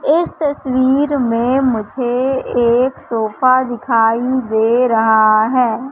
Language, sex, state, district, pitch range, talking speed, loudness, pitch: Hindi, female, Madhya Pradesh, Katni, 225-260 Hz, 100 wpm, -15 LUFS, 250 Hz